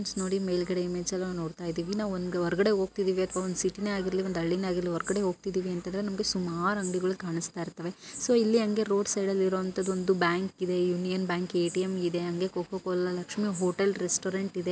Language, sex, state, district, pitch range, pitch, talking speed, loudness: Kannada, female, Karnataka, Gulbarga, 180-195 Hz, 185 Hz, 190 wpm, -30 LUFS